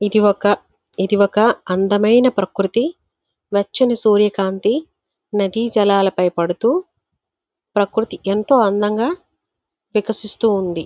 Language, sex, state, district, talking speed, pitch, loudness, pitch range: Telugu, female, Andhra Pradesh, Visakhapatnam, 85 wpm, 210 Hz, -17 LUFS, 195-225 Hz